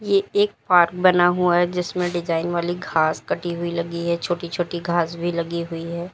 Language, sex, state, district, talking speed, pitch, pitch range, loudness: Hindi, female, Uttar Pradesh, Lalitpur, 205 wpm, 175 Hz, 170-180 Hz, -21 LUFS